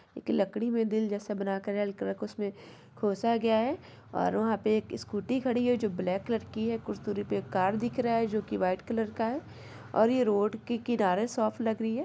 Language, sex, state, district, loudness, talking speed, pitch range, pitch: Hindi, female, Bihar, Saran, -30 LUFS, 210 wpm, 205-230 Hz, 220 Hz